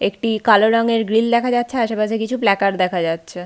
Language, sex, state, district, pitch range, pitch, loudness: Bengali, female, West Bengal, Paschim Medinipur, 195-230 Hz, 220 Hz, -17 LUFS